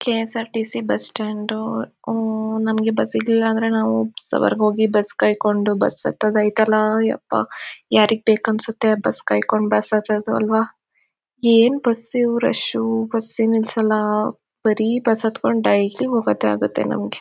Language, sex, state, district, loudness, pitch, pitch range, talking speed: Kannada, female, Karnataka, Mysore, -19 LUFS, 220 Hz, 210-225 Hz, 135 wpm